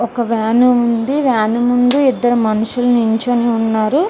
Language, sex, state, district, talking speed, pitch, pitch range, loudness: Telugu, female, Andhra Pradesh, Srikakulam, 130 wpm, 240 Hz, 225-245 Hz, -14 LUFS